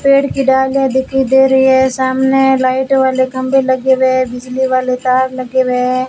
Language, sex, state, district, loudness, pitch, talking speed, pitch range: Hindi, female, Rajasthan, Bikaner, -12 LUFS, 260 Hz, 195 wpm, 255-265 Hz